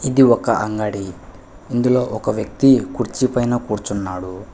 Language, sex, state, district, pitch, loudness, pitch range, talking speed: Telugu, male, Telangana, Hyderabad, 110 Hz, -18 LUFS, 100-125 Hz, 120 wpm